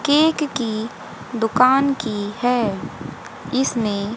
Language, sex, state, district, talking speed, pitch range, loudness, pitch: Hindi, female, Haryana, Jhajjar, 85 wpm, 220-270 Hz, -20 LUFS, 240 Hz